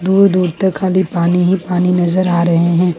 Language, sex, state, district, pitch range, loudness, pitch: Hindi, female, Jharkhand, Ranchi, 175-185 Hz, -14 LUFS, 180 Hz